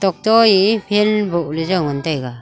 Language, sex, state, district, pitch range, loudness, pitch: Wancho, female, Arunachal Pradesh, Longding, 160-210 Hz, -16 LUFS, 190 Hz